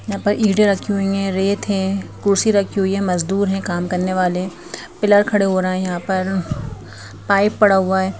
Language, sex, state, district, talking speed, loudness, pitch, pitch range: Hindi, female, Madhya Pradesh, Bhopal, 205 wpm, -18 LUFS, 195 Hz, 185-200 Hz